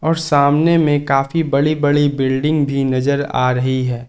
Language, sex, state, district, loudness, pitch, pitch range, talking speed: Hindi, male, Jharkhand, Garhwa, -16 LUFS, 140 Hz, 130-150 Hz, 175 wpm